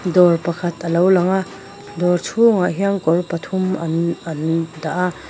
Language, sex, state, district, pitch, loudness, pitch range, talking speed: Mizo, female, Mizoram, Aizawl, 175 Hz, -18 LUFS, 165-185 Hz, 160 wpm